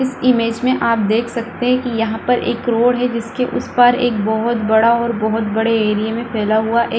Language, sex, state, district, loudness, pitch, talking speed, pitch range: Hindi, female, Bihar, Supaul, -16 LUFS, 235 Hz, 250 wpm, 220-245 Hz